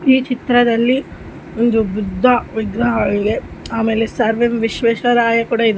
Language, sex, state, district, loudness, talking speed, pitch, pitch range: Kannada, female, Karnataka, Shimoga, -16 LUFS, 125 wpm, 230 Hz, 225-245 Hz